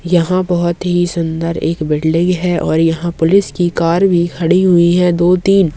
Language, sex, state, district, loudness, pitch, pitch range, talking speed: Hindi, female, Rajasthan, Nagaur, -13 LUFS, 175 Hz, 165-180 Hz, 185 wpm